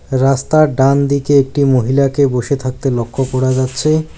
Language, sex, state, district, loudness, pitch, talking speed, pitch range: Bengali, male, West Bengal, Alipurduar, -14 LUFS, 135 Hz, 130 wpm, 130-140 Hz